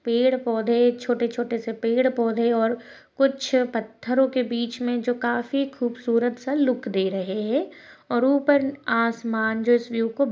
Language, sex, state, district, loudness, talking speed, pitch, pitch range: Hindi, female, Maharashtra, Dhule, -23 LUFS, 165 wpm, 240 Hz, 230-260 Hz